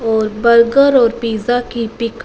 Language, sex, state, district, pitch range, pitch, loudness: Hindi, female, Punjab, Fazilka, 225-245 Hz, 235 Hz, -13 LUFS